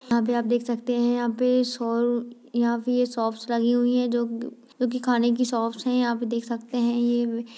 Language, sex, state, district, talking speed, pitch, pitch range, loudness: Hindi, female, Bihar, Purnia, 230 wpm, 240 Hz, 235-245 Hz, -25 LUFS